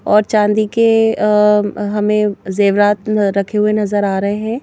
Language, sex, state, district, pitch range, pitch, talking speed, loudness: Hindi, female, Madhya Pradesh, Bhopal, 205-215 Hz, 210 Hz, 145 wpm, -14 LUFS